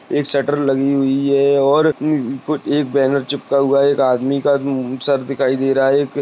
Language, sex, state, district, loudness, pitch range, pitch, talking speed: Hindi, male, Maharashtra, Sindhudurg, -16 LUFS, 135-145 Hz, 140 Hz, 205 wpm